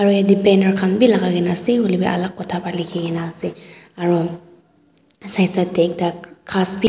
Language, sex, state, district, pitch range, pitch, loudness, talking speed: Nagamese, female, Nagaland, Dimapur, 175-195 Hz, 180 Hz, -18 LUFS, 175 wpm